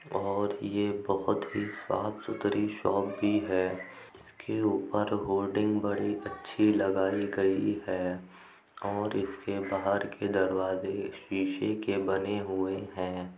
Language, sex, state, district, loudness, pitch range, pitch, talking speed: Hindi, male, Uttar Pradesh, Jyotiba Phule Nagar, -31 LUFS, 95-100 Hz, 100 Hz, 120 wpm